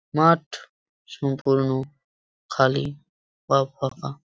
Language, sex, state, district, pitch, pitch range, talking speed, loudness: Bengali, male, West Bengal, Purulia, 135 Hz, 135-145 Hz, 85 wpm, -23 LUFS